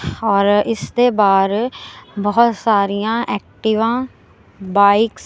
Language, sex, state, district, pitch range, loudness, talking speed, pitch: Punjabi, female, Punjab, Kapurthala, 200-230 Hz, -16 LUFS, 105 wpm, 215 Hz